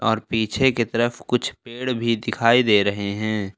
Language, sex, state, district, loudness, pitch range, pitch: Hindi, male, Jharkhand, Ranchi, -21 LUFS, 110-120 Hz, 115 Hz